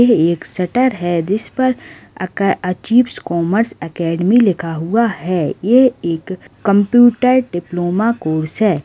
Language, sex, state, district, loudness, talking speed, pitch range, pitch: Hindi, female, Chhattisgarh, Kabirdham, -15 LUFS, 120 wpm, 170-235 Hz, 190 Hz